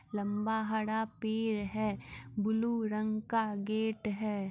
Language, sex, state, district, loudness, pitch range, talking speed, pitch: Hindi, female, Bihar, Muzaffarpur, -34 LUFS, 205-220 Hz, 120 wpm, 215 Hz